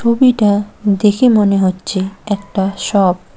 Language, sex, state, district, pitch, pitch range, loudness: Bengali, female, West Bengal, Cooch Behar, 205 Hz, 195-210 Hz, -14 LUFS